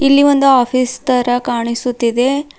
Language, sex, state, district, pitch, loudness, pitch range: Kannada, female, Karnataka, Bidar, 255 Hz, -14 LUFS, 245-275 Hz